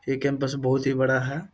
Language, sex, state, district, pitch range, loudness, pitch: Hindi, male, Bihar, Samastipur, 130-140 Hz, -25 LUFS, 135 Hz